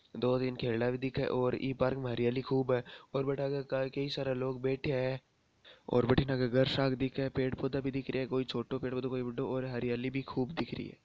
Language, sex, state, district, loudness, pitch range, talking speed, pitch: Marwari, male, Rajasthan, Nagaur, -34 LUFS, 125-135 Hz, 240 wpm, 130 Hz